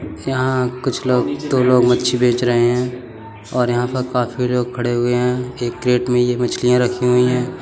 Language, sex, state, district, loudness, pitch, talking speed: Hindi, male, Uttar Pradesh, Budaun, -17 LUFS, 125 Hz, 195 wpm